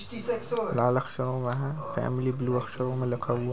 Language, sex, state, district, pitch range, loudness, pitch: Hindi, male, West Bengal, Jalpaiguri, 125-135 Hz, -29 LUFS, 125 Hz